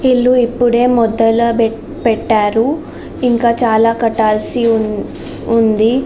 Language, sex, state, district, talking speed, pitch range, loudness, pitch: Telugu, female, Andhra Pradesh, Srikakulam, 70 wpm, 225-245 Hz, -13 LUFS, 230 Hz